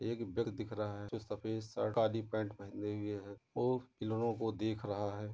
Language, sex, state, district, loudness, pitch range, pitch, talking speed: Hindi, male, Uttar Pradesh, Muzaffarnagar, -39 LUFS, 105-115 Hz, 110 Hz, 205 wpm